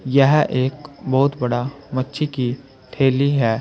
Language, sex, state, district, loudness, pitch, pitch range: Hindi, male, Uttar Pradesh, Saharanpur, -19 LUFS, 135 Hz, 130-140 Hz